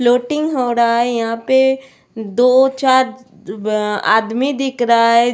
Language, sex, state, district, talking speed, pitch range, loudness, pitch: Hindi, female, Goa, North and South Goa, 135 wpm, 230-260 Hz, -15 LUFS, 240 Hz